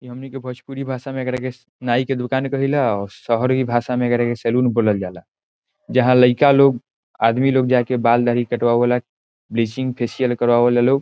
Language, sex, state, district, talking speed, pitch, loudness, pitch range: Bhojpuri, male, Bihar, Saran, 200 wpm, 125 Hz, -18 LUFS, 120-130 Hz